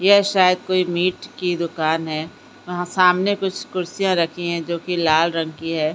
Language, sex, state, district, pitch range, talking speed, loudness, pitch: Hindi, female, Bihar, Supaul, 165-185 Hz, 200 wpm, -20 LUFS, 175 Hz